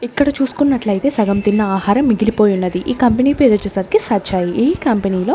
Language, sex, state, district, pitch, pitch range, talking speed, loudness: Telugu, female, Andhra Pradesh, Sri Satya Sai, 215 Hz, 200-260 Hz, 155 wpm, -15 LUFS